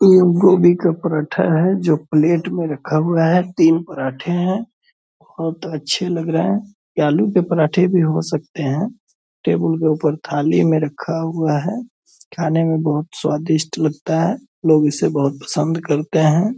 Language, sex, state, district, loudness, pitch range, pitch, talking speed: Hindi, male, Bihar, Purnia, -18 LUFS, 155-180 Hz, 165 Hz, 170 wpm